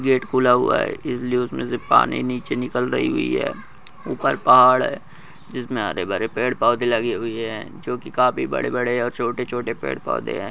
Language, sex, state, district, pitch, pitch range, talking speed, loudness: Hindi, male, Uttarakhand, Uttarkashi, 120 Hz, 110-125 Hz, 205 wpm, -21 LUFS